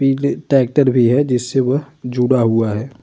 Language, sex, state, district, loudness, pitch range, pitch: Hindi, male, Uttar Pradesh, Budaun, -16 LUFS, 125-135 Hz, 130 Hz